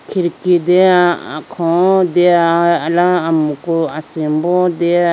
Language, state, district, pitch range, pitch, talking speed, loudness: Idu Mishmi, Arunachal Pradesh, Lower Dibang Valley, 165-180 Hz, 175 Hz, 95 wpm, -14 LUFS